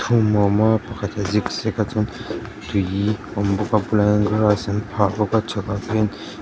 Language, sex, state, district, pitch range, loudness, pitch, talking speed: Mizo, male, Mizoram, Aizawl, 100-110 Hz, -21 LUFS, 105 Hz, 215 wpm